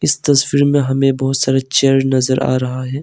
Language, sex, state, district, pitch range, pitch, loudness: Hindi, male, Arunachal Pradesh, Longding, 130-140 Hz, 135 Hz, -15 LUFS